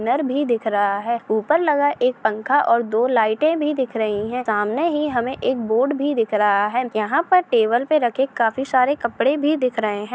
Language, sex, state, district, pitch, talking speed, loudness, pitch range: Hindi, female, Chhattisgarh, Raigarh, 245 Hz, 220 wpm, -20 LUFS, 220-285 Hz